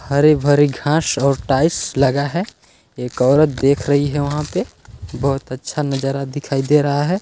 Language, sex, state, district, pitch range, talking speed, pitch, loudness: Hindi, male, Chhattisgarh, Balrampur, 135-150 Hz, 175 wpm, 140 Hz, -17 LUFS